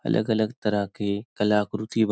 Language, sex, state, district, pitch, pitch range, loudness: Hindi, male, Maharashtra, Nagpur, 105 Hz, 105-110 Hz, -25 LUFS